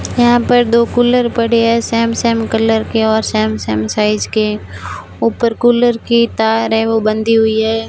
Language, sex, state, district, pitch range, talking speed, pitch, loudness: Hindi, female, Rajasthan, Barmer, 220-235 Hz, 180 wpm, 225 Hz, -13 LUFS